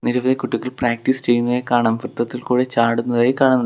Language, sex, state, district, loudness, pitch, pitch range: Malayalam, male, Kerala, Kollam, -19 LUFS, 125 Hz, 120-130 Hz